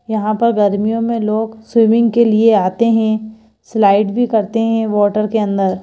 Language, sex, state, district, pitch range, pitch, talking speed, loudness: Hindi, female, Madhya Pradesh, Bhopal, 210-225 Hz, 220 Hz, 175 wpm, -14 LUFS